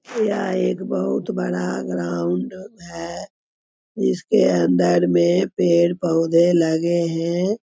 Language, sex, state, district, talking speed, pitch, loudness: Hindi, female, Bihar, Begusarai, 95 wpm, 165 Hz, -20 LUFS